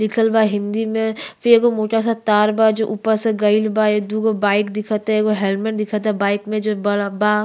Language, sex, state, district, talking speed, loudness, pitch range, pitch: Bhojpuri, female, Uttar Pradesh, Gorakhpur, 200 wpm, -18 LUFS, 210-220 Hz, 215 Hz